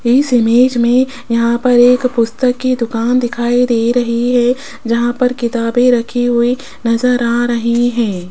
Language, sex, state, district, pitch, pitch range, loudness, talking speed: Hindi, female, Rajasthan, Jaipur, 240 Hz, 235-250 Hz, -13 LUFS, 160 wpm